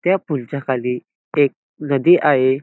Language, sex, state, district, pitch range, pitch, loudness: Marathi, male, Maharashtra, Dhule, 130-165 Hz, 145 Hz, -18 LUFS